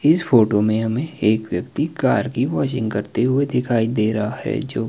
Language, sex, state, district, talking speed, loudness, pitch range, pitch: Hindi, male, Himachal Pradesh, Shimla, 195 wpm, -20 LUFS, 110-130 Hz, 115 Hz